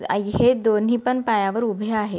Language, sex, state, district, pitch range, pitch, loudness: Marathi, female, Maharashtra, Nagpur, 210-240 Hz, 220 Hz, -21 LUFS